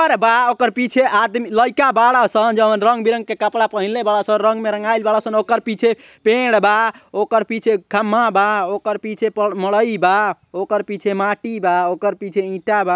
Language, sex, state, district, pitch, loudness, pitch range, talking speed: Bhojpuri, male, Uttar Pradesh, Ghazipur, 215 Hz, -17 LUFS, 205-230 Hz, 180 wpm